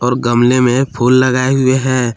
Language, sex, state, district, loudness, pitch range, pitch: Hindi, male, Jharkhand, Palamu, -12 LUFS, 125-130 Hz, 130 Hz